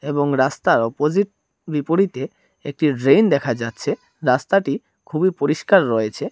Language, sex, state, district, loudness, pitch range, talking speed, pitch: Bengali, male, Tripura, Dhalai, -19 LUFS, 130-160 Hz, 115 wpm, 145 Hz